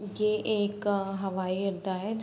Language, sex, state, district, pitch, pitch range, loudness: Hindi, female, Uttar Pradesh, Varanasi, 200 Hz, 195-210 Hz, -30 LUFS